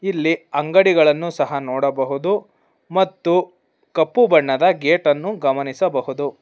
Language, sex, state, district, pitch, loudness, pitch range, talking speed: Kannada, female, Karnataka, Bangalore, 160 Hz, -18 LUFS, 140-185 Hz, 85 wpm